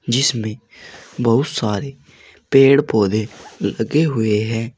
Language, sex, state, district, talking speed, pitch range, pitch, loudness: Hindi, male, Uttar Pradesh, Saharanpur, 100 wpm, 110-135 Hz, 115 Hz, -18 LUFS